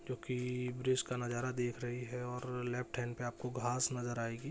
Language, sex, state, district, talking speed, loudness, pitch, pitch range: Hindi, male, Bihar, Jahanabad, 215 wpm, -39 LUFS, 125 Hz, 120-125 Hz